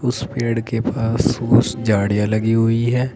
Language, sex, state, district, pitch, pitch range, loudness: Hindi, male, Uttar Pradesh, Saharanpur, 115 Hz, 115-120 Hz, -18 LUFS